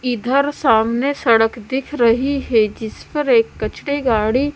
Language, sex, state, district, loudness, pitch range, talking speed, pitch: Hindi, female, Punjab, Kapurthala, -17 LUFS, 225-280 Hz, 145 wpm, 250 Hz